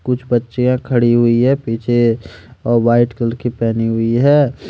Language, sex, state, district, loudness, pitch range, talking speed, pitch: Hindi, male, Jharkhand, Deoghar, -15 LUFS, 115-125 Hz, 165 wpm, 120 Hz